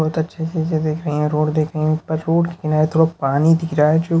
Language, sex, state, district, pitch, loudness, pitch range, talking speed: Hindi, male, Haryana, Charkhi Dadri, 155 Hz, -18 LUFS, 155-160 Hz, 270 wpm